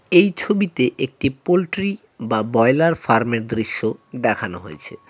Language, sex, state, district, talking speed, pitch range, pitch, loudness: Bengali, male, West Bengal, Cooch Behar, 130 wpm, 115-180 Hz, 130 Hz, -19 LUFS